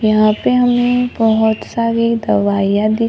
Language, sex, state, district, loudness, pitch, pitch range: Hindi, female, Maharashtra, Gondia, -14 LUFS, 225 Hz, 215-235 Hz